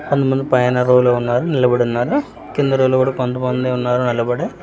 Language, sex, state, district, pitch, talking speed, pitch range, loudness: Telugu, male, Telangana, Hyderabad, 125 Hz, 205 wpm, 125-135 Hz, -17 LUFS